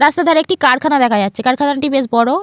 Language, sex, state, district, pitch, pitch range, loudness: Bengali, female, West Bengal, Jalpaiguri, 285 Hz, 245-300 Hz, -14 LUFS